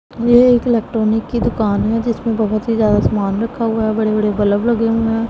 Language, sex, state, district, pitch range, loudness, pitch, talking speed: Hindi, female, Punjab, Pathankot, 215-235 Hz, -16 LUFS, 225 Hz, 225 wpm